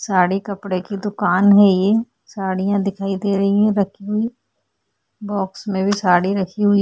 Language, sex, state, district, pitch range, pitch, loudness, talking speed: Hindi, female, Uttarakhand, Tehri Garhwal, 190-205 Hz, 200 Hz, -18 LUFS, 175 wpm